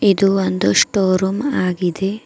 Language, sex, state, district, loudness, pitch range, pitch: Kannada, female, Karnataka, Bidar, -17 LUFS, 180-200 Hz, 190 Hz